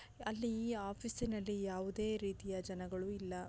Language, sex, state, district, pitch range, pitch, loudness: Kannada, female, Karnataka, Belgaum, 190-215 Hz, 200 Hz, -41 LUFS